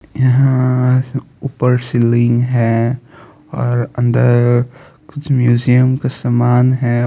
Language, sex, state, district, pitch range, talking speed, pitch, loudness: Hindi, male, Jharkhand, Sahebganj, 120-130 Hz, 95 wpm, 125 Hz, -14 LUFS